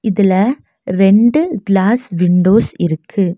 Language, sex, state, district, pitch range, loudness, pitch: Tamil, female, Tamil Nadu, Nilgiris, 180-220 Hz, -13 LUFS, 195 Hz